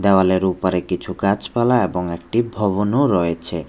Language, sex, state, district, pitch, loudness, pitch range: Bengali, male, Tripura, West Tripura, 95 Hz, -19 LUFS, 90-105 Hz